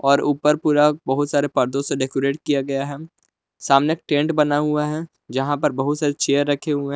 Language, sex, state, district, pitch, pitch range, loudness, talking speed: Hindi, male, Jharkhand, Palamu, 145 Hz, 140-150 Hz, -20 LUFS, 205 wpm